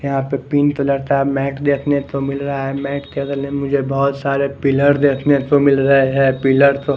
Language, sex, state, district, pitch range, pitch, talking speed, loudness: Hindi, male, Maharashtra, Mumbai Suburban, 135-140 Hz, 140 Hz, 230 wpm, -16 LUFS